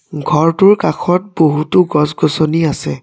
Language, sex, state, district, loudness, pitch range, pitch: Assamese, male, Assam, Sonitpur, -13 LUFS, 150-180 Hz, 155 Hz